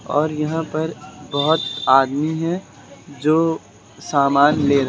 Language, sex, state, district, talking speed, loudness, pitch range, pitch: Hindi, male, Uttar Pradesh, Lucknow, 110 wpm, -19 LUFS, 140-155 Hz, 145 Hz